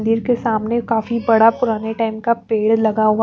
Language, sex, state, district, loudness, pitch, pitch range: Hindi, female, Bihar, West Champaran, -17 LUFS, 225 Hz, 220-235 Hz